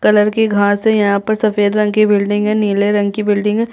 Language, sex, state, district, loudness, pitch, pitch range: Hindi, female, Chhattisgarh, Jashpur, -14 LUFS, 210 Hz, 205-215 Hz